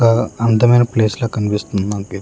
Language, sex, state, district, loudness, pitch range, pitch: Telugu, male, Andhra Pradesh, Srikakulam, -16 LUFS, 105-115 Hz, 110 Hz